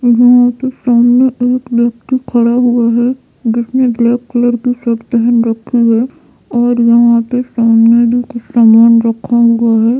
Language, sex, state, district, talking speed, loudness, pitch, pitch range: Hindi, female, Bihar, Sitamarhi, 155 wpm, -11 LUFS, 240 Hz, 235-245 Hz